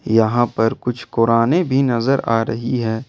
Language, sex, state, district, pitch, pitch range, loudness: Hindi, male, Jharkhand, Ranchi, 115 Hz, 115-125 Hz, -18 LUFS